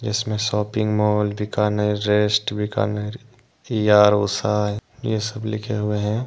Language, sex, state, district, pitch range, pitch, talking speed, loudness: Hindi, male, Jharkhand, Deoghar, 105-110 Hz, 105 Hz, 135 wpm, -21 LUFS